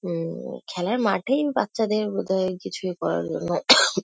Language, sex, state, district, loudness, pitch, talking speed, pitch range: Bengali, female, West Bengal, Kolkata, -23 LUFS, 190 Hz, 135 wpm, 175-220 Hz